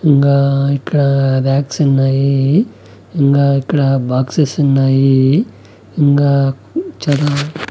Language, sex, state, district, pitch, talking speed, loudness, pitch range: Telugu, male, Andhra Pradesh, Annamaya, 140 Hz, 85 wpm, -13 LUFS, 135-145 Hz